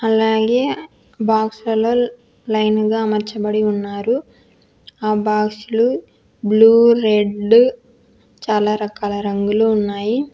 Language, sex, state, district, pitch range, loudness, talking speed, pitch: Telugu, female, Telangana, Hyderabad, 210-230 Hz, -17 LUFS, 95 wpm, 220 Hz